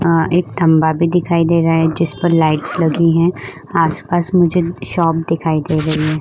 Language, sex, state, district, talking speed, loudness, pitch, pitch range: Hindi, female, Uttar Pradesh, Muzaffarnagar, 205 wpm, -15 LUFS, 165 Hz, 160-170 Hz